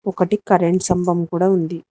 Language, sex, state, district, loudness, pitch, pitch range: Telugu, female, Telangana, Hyderabad, -18 LUFS, 180 Hz, 175-190 Hz